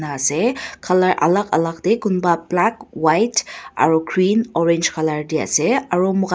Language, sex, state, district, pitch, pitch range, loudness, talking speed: Nagamese, female, Nagaland, Dimapur, 180 Hz, 160-215 Hz, -18 LUFS, 160 wpm